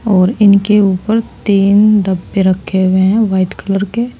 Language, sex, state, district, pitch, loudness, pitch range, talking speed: Hindi, female, Uttar Pradesh, Saharanpur, 200 Hz, -12 LUFS, 190-210 Hz, 155 wpm